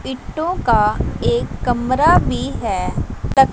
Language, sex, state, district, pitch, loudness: Hindi, female, Punjab, Pathankot, 245 Hz, -18 LUFS